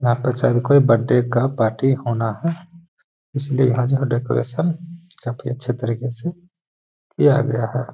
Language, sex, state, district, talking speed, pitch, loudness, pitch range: Hindi, male, Bihar, Gaya, 150 wpm, 130 Hz, -20 LUFS, 120-150 Hz